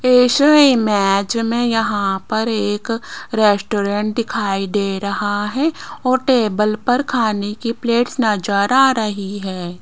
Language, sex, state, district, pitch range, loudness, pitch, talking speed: Hindi, female, Rajasthan, Jaipur, 205-240 Hz, -17 LUFS, 215 Hz, 130 wpm